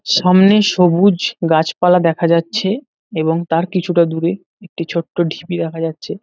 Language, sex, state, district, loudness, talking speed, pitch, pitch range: Bengali, male, West Bengal, North 24 Parganas, -15 LUFS, 135 wpm, 175 Hz, 165-190 Hz